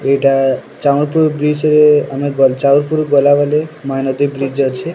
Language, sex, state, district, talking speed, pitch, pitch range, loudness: Odia, male, Odisha, Sambalpur, 110 wpm, 140 Hz, 135-150 Hz, -13 LUFS